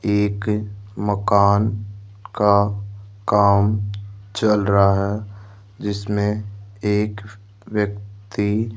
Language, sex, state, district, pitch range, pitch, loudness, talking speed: Hindi, male, Rajasthan, Jaipur, 100-105 Hz, 100 Hz, -20 LUFS, 75 wpm